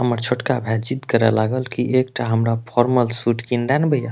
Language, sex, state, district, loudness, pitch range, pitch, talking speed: Maithili, male, Bihar, Madhepura, -19 LUFS, 115-130 Hz, 120 Hz, 220 wpm